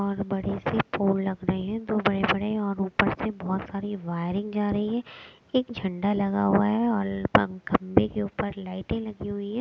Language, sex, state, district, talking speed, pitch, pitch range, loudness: Hindi, female, Bihar, West Champaran, 200 wpm, 200 Hz, 190-210 Hz, -27 LUFS